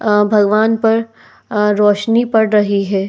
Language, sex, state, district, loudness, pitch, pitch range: Hindi, female, Uttar Pradesh, Etah, -14 LUFS, 210 Hz, 205-225 Hz